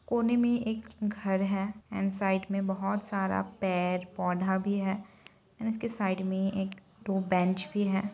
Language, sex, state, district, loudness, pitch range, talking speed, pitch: Hindi, female, Bihar, Saran, -31 LUFS, 190-205 Hz, 160 wpm, 195 Hz